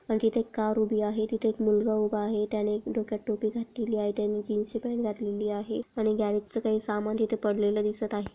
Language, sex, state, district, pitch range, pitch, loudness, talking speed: Marathi, female, Maharashtra, Pune, 210-220 Hz, 215 Hz, -29 LUFS, 220 wpm